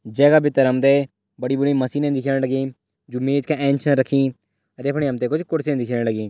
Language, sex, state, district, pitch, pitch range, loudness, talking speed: Garhwali, male, Uttarakhand, Tehri Garhwal, 135 Hz, 125-140 Hz, -20 LUFS, 230 wpm